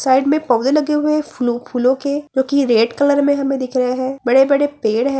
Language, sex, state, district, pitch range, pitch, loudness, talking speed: Hindi, female, Bihar, Jamui, 250-285 Hz, 270 Hz, -16 LUFS, 255 wpm